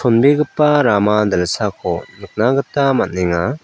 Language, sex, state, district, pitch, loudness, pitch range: Garo, male, Meghalaya, West Garo Hills, 125 Hz, -16 LUFS, 100-145 Hz